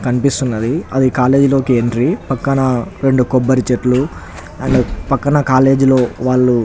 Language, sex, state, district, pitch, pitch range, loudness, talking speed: Telugu, male, Telangana, Nalgonda, 130 Hz, 125-135 Hz, -14 LUFS, 125 wpm